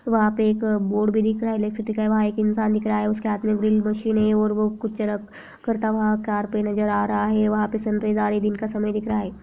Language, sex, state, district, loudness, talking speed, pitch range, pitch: Hindi, female, Bihar, Madhepura, -22 LUFS, 265 wpm, 210-215 Hz, 215 Hz